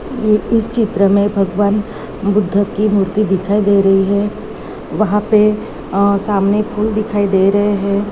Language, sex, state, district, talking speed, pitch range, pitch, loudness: Hindi, female, Maharashtra, Nagpur, 155 wpm, 200-210 Hz, 205 Hz, -15 LUFS